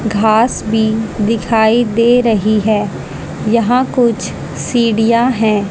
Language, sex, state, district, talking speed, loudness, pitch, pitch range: Hindi, female, Haryana, Jhajjar, 105 wpm, -13 LUFS, 225 Hz, 215-235 Hz